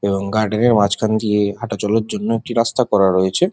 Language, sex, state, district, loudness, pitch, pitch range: Bengali, male, West Bengal, Jhargram, -17 LUFS, 110 Hz, 100-115 Hz